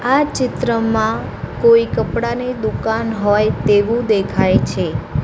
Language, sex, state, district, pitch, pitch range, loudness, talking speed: Gujarati, female, Gujarat, Gandhinagar, 225 Hz, 215-250 Hz, -16 LUFS, 105 wpm